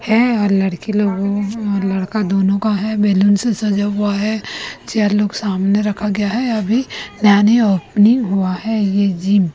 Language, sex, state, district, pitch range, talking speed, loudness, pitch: Hindi, female, Chhattisgarh, Raipur, 195-215 Hz, 170 wpm, -16 LUFS, 205 Hz